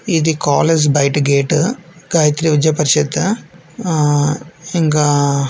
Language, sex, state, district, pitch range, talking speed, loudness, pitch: Telugu, male, Andhra Pradesh, Visakhapatnam, 145-165 Hz, 110 wpm, -15 LUFS, 155 Hz